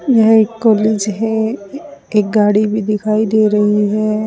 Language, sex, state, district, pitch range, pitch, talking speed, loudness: Hindi, female, Uttar Pradesh, Saharanpur, 210-220 Hz, 215 Hz, 155 wpm, -14 LUFS